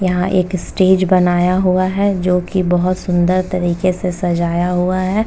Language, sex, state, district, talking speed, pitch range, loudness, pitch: Hindi, female, Uttar Pradesh, Jalaun, 160 wpm, 180-185 Hz, -15 LUFS, 185 Hz